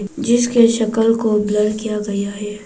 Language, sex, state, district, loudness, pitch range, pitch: Hindi, female, Arunachal Pradesh, Papum Pare, -17 LUFS, 210-230 Hz, 215 Hz